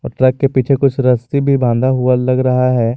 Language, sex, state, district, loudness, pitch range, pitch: Hindi, male, Jharkhand, Garhwa, -14 LUFS, 125-135 Hz, 130 Hz